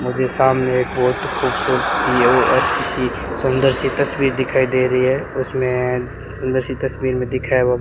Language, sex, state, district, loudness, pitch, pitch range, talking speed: Hindi, male, Rajasthan, Bikaner, -18 LUFS, 130 Hz, 125-130 Hz, 175 wpm